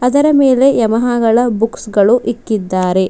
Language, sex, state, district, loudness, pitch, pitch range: Kannada, female, Karnataka, Bidar, -13 LUFS, 230 Hz, 215-250 Hz